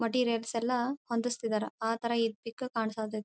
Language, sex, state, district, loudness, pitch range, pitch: Kannada, female, Karnataka, Dharwad, -32 LUFS, 225-245 Hz, 230 Hz